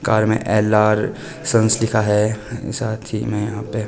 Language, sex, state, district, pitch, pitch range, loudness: Hindi, male, Himachal Pradesh, Shimla, 110 Hz, 105-110 Hz, -19 LUFS